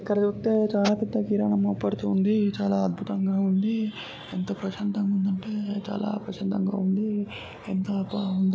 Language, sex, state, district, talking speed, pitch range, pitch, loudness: Telugu, male, Andhra Pradesh, Srikakulam, 110 wpm, 195-210 Hz, 200 Hz, -26 LUFS